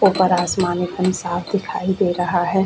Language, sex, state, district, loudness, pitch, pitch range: Hindi, female, Chhattisgarh, Bastar, -20 LUFS, 180 Hz, 175-190 Hz